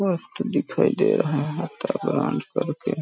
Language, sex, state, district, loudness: Hindi, male, Chhattisgarh, Balrampur, -24 LUFS